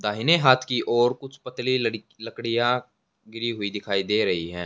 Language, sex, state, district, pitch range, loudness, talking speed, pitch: Hindi, male, Haryana, Jhajjar, 105-130 Hz, -23 LUFS, 180 wpm, 115 Hz